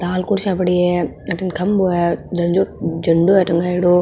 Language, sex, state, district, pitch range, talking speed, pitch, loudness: Marwari, female, Rajasthan, Nagaur, 175-190 Hz, 165 wpm, 180 Hz, -17 LUFS